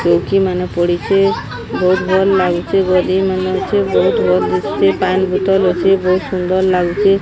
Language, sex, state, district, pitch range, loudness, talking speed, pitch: Odia, female, Odisha, Sambalpur, 180-195 Hz, -14 LUFS, 150 wpm, 185 Hz